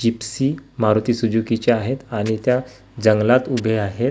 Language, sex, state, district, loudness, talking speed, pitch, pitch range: Marathi, male, Maharashtra, Gondia, -20 LUFS, 130 wpm, 115 Hz, 110-125 Hz